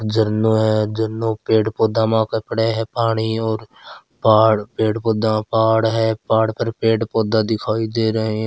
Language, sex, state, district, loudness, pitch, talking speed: Marwari, male, Rajasthan, Churu, -18 LUFS, 110 Hz, 165 wpm